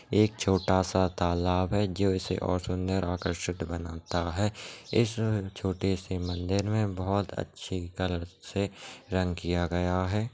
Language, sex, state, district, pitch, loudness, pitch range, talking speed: Hindi, male, Chhattisgarh, Raigarh, 95 Hz, -30 LUFS, 90-100 Hz, 145 wpm